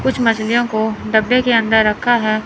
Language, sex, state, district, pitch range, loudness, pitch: Hindi, male, Chandigarh, Chandigarh, 215-240 Hz, -15 LUFS, 225 Hz